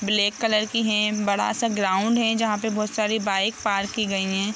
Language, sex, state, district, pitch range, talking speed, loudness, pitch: Hindi, female, Jharkhand, Jamtara, 200-220 Hz, 195 wpm, -23 LUFS, 210 Hz